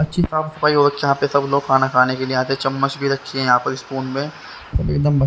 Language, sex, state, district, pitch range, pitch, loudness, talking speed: Hindi, male, Haryana, Rohtak, 135-145 Hz, 140 Hz, -19 LUFS, 250 wpm